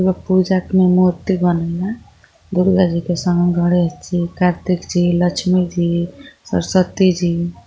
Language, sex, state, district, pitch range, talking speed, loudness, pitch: Hindi, female, Uttar Pradesh, Gorakhpur, 175-185 Hz, 150 wpm, -17 LUFS, 180 Hz